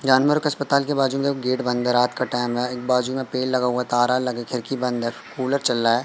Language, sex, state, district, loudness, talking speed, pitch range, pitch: Hindi, male, Madhya Pradesh, Katni, -22 LUFS, 295 wpm, 125-135 Hz, 125 Hz